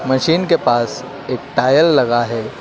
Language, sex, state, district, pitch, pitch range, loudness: Hindi, male, Madhya Pradesh, Dhar, 120 Hz, 120-160 Hz, -16 LUFS